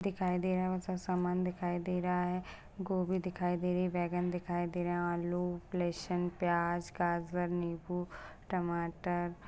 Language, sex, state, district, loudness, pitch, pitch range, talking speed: Hindi, female, Chhattisgarh, Bastar, -35 LUFS, 180 Hz, 175-180 Hz, 165 wpm